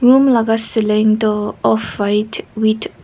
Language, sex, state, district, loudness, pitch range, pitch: Nagamese, female, Nagaland, Kohima, -15 LUFS, 210-225 Hz, 215 Hz